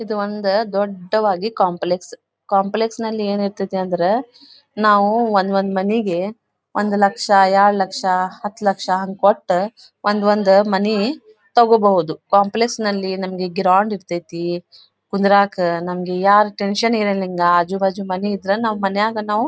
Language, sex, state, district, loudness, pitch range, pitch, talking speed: Kannada, female, Karnataka, Dharwad, -18 LUFS, 190-210 Hz, 200 Hz, 125 wpm